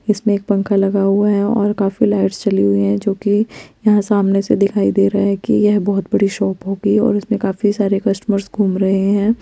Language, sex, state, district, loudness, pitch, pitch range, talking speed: Hindi, female, Chandigarh, Chandigarh, -16 LUFS, 200 Hz, 195-205 Hz, 225 wpm